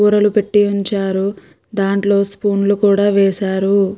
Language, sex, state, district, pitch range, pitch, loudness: Telugu, female, Andhra Pradesh, Guntur, 195-205 Hz, 200 Hz, -15 LUFS